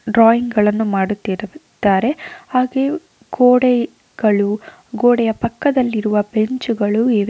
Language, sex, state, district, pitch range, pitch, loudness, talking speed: Kannada, female, Karnataka, Raichur, 210-255 Hz, 230 Hz, -17 LUFS, 75 wpm